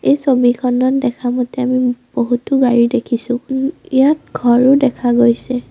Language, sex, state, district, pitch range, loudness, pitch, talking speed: Assamese, female, Assam, Sonitpur, 245-265 Hz, -15 LUFS, 250 Hz, 135 wpm